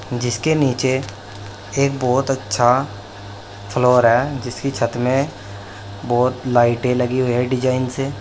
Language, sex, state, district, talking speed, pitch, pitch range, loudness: Hindi, male, Uttar Pradesh, Saharanpur, 125 wpm, 125 Hz, 100-130 Hz, -18 LUFS